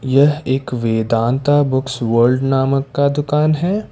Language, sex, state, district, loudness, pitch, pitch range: Hindi, male, Karnataka, Bangalore, -16 LUFS, 135 Hz, 125-145 Hz